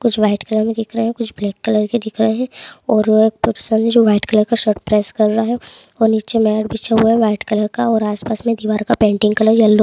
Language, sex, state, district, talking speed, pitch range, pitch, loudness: Hindi, male, West Bengal, Jalpaiguri, 245 wpm, 215-225 Hz, 220 Hz, -16 LUFS